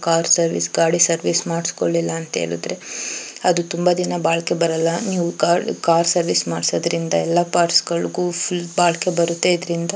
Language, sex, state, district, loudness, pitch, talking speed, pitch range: Kannada, female, Karnataka, Chamarajanagar, -19 LUFS, 170 Hz, 125 wpm, 165-175 Hz